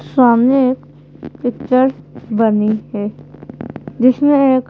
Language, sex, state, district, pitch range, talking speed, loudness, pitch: Hindi, female, Madhya Pradesh, Bhopal, 225-260 Hz, 100 wpm, -15 LUFS, 255 Hz